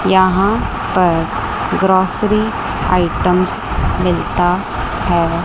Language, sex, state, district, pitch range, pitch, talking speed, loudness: Hindi, female, Chandigarh, Chandigarh, 180-200 Hz, 185 Hz, 65 wpm, -15 LUFS